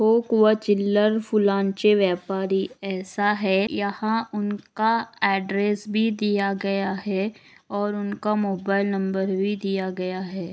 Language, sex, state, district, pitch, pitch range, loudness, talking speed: Hindi, female, Maharashtra, Nagpur, 200 Hz, 195-210 Hz, -23 LUFS, 120 wpm